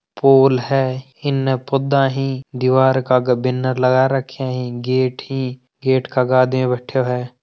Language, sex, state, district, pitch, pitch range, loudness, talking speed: Marwari, male, Rajasthan, Churu, 130 Hz, 125-135 Hz, -18 LUFS, 160 wpm